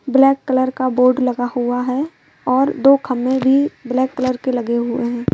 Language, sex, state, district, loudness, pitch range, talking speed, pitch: Hindi, female, Madhya Pradesh, Bhopal, -17 LUFS, 245-270 Hz, 190 wpm, 255 Hz